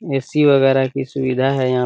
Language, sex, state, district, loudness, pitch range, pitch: Hindi, male, Bihar, Araria, -17 LUFS, 130-135 Hz, 135 Hz